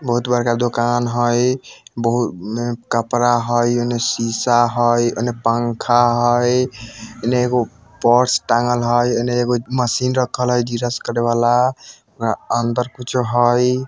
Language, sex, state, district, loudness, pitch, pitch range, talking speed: Bajjika, male, Bihar, Vaishali, -18 LUFS, 120 Hz, 120-125 Hz, 120 wpm